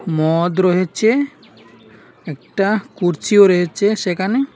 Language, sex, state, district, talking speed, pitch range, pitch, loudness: Bengali, male, Assam, Hailakandi, 80 wpm, 175-215 Hz, 190 Hz, -16 LUFS